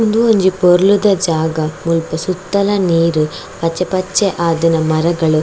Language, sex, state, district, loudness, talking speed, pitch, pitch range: Tulu, female, Karnataka, Dakshina Kannada, -14 LUFS, 120 wpm, 170 Hz, 160-190 Hz